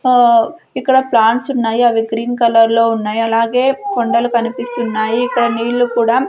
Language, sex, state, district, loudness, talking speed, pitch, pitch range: Telugu, female, Andhra Pradesh, Sri Satya Sai, -14 LUFS, 135 wpm, 235 Hz, 230-245 Hz